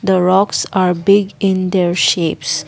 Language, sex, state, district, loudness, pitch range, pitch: English, female, Assam, Kamrup Metropolitan, -14 LUFS, 175-195 Hz, 185 Hz